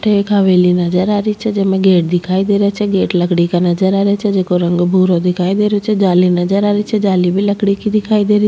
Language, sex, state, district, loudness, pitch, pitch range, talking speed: Rajasthani, female, Rajasthan, Churu, -13 LUFS, 195 Hz, 180-205 Hz, 270 wpm